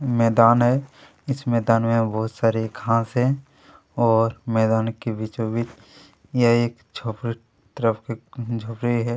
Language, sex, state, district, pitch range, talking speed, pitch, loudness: Hindi, male, Chhattisgarh, Kabirdham, 115-120 Hz, 125 wpm, 115 Hz, -22 LUFS